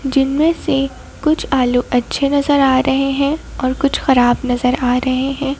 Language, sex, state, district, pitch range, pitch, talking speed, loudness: Hindi, female, Madhya Pradesh, Bhopal, 255-280 Hz, 270 Hz, 170 wpm, -16 LUFS